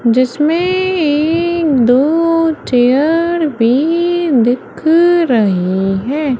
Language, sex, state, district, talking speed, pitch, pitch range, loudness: Hindi, female, Madhya Pradesh, Umaria, 75 wpm, 300 Hz, 245-335 Hz, -13 LUFS